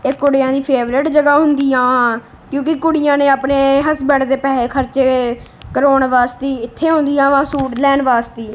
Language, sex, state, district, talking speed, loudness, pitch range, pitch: Punjabi, male, Punjab, Kapurthala, 155 wpm, -14 LUFS, 255-285 Hz, 275 Hz